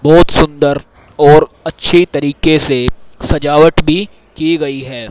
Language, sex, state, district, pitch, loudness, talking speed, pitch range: Hindi, male, Haryana, Rohtak, 150 Hz, -11 LUFS, 130 wpm, 135-160 Hz